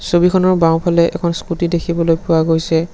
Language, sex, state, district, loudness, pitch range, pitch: Assamese, male, Assam, Sonitpur, -15 LUFS, 165-170 Hz, 170 Hz